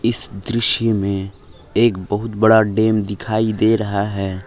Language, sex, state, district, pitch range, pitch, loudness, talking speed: Hindi, male, Jharkhand, Palamu, 100-110 Hz, 105 Hz, -18 LUFS, 145 wpm